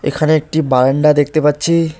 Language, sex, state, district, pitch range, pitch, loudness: Bengali, male, West Bengal, Alipurduar, 145-160 Hz, 155 Hz, -14 LUFS